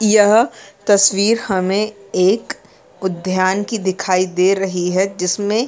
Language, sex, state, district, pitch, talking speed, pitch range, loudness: Hindi, female, Jharkhand, Jamtara, 195 Hz, 115 wpm, 185-210 Hz, -16 LUFS